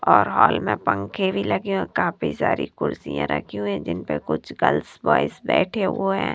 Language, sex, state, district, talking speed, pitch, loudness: Hindi, female, Bihar, Katihar, 180 wpm, 100 Hz, -22 LUFS